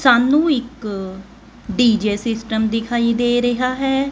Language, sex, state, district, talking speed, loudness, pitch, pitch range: Punjabi, female, Punjab, Kapurthala, 115 wpm, -18 LUFS, 235 Hz, 220-255 Hz